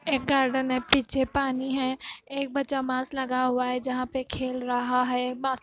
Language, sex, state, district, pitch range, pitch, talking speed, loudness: Hindi, female, Punjab, Fazilka, 255-270 Hz, 260 Hz, 190 wpm, -26 LUFS